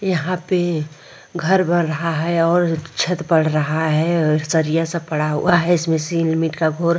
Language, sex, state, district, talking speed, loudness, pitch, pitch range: Hindi, female, Bihar, Vaishali, 180 wpm, -18 LUFS, 165 Hz, 155-175 Hz